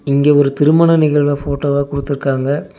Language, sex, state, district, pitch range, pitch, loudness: Tamil, male, Tamil Nadu, Nilgiris, 140-150 Hz, 145 Hz, -14 LUFS